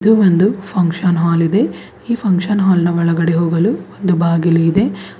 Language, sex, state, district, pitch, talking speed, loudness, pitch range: Kannada, female, Karnataka, Bidar, 180 Hz, 150 wpm, -15 LUFS, 170-200 Hz